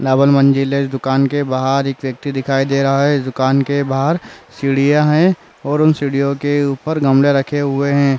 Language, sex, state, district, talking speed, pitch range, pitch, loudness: Hindi, male, Uttar Pradesh, Jyotiba Phule Nagar, 200 wpm, 135-145 Hz, 140 Hz, -15 LUFS